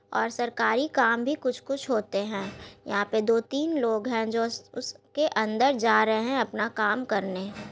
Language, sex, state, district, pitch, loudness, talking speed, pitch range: Hindi, female, Bihar, Gaya, 230 Hz, -27 LUFS, 180 wpm, 215-260 Hz